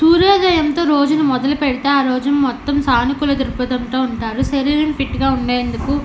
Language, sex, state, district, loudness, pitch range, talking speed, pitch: Telugu, female, Andhra Pradesh, Anantapur, -16 LUFS, 255-290 Hz, 140 wpm, 275 Hz